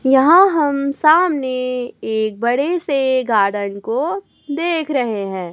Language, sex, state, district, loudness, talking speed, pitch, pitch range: Hindi, female, Chhattisgarh, Raipur, -17 LUFS, 120 wpm, 265 Hz, 225-310 Hz